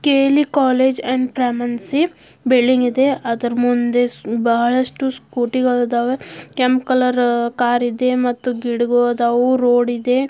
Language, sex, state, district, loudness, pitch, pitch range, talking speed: Kannada, female, Karnataka, Belgaum, -17 LUFS, 245 Hz, 240-255 Hz, 115 wpm